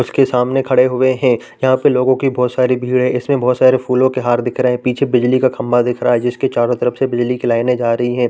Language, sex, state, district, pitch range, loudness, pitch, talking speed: Hindi, male, Chhattisgarh, Raigarh, 125-130 Hz, -15 LUFS, 125 Hz, 290 wpm